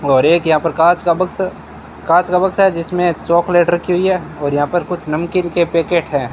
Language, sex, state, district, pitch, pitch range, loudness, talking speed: Hindi, male, Rajasthan, Bikaner, 170 Hz, 155-180 Hz, -15 LUFS, 230 wpm